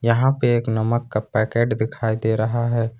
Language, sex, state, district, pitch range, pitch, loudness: Hindi, male, Jharkhand, Ranchi, 110-120 Hz, 115 Hz, -21 LUFS